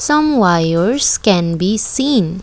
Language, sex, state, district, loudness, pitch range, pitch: English, female, Assam, Kamrup Metropolitan, -14 LUFS, 175-270 Hz, 210 Hz